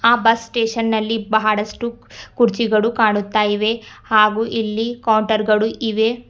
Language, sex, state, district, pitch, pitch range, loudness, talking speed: Kannada, female, Karnataka, Bidar, 225 Hz, 215-230 Hz, -18 LUFS, 125 wpm